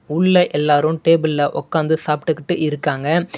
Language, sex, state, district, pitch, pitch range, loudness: Tamil, male, Tamil Nadu, Namakkal, 160 Hz, 150-165 Hz, -17 LUFS